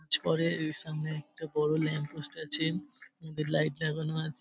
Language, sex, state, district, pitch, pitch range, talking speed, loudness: Bengali, male, West Bengal, Paschim Medinipur, 155 Hz, 150-160 Hz, 165 wpm, -32 LUFS